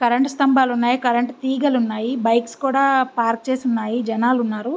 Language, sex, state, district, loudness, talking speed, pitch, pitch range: Telugu, female, Andhra Pradesh, Visakhapatnam, -19 LUFS, 150 wpm, 245 Hz, 235-265 Hz